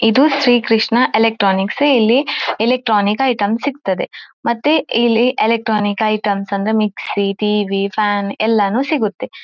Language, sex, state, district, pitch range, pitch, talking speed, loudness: Kannada, female, Karnataka, Dakshina Kannada, 205-250 Hz, 220 Hz, 115 wpm, -16 LUFS